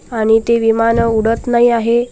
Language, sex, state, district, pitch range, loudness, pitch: Marathi, female, Maharashtra, Washim, 225-235 Hz, -13 LUFS, 230 Hz